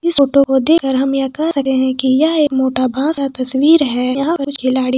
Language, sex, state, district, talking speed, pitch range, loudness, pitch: Hindi, female, Jharkhand, Sahebganj, 180 wpm, 260-300 Hz, -15 LUFS, 270 Hz